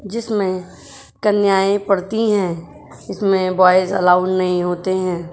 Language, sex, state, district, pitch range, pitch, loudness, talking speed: Hindi, female, Uttar Pradesh, Jyotiba Phule Nagar, 180-200 Hz, 185 Hz, -17 LUFS, 115 wpm